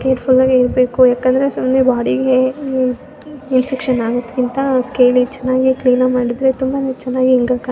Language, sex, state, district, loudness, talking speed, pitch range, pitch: Kannada, female, Karnataka, Chamarajanagar, -15 LUFS, 130 wpm, 250-265 Hz, 255 Hz